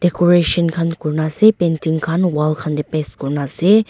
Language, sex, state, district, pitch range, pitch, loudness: Nagamese, female, Nagaland, Dimapur, 155-175 Hz, 165 Hz, -17 LUFS